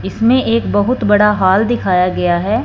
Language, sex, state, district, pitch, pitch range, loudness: Hindi, female, Punjab, Fazilka, 205 Hz, 190-230 Hz, -13 LUFS